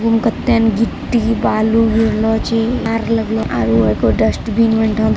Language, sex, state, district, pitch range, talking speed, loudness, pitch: Angika, female, Bihar, Bhagalpur, 220-230 Hz, 185 wpm, -15 LUFS, 225 Hz